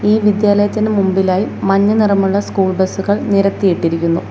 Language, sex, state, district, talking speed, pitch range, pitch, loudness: Malayalam, female, Kerala, Kollam, 110 wpm, 190-205 Hz, 195 Hz, -14 LUFS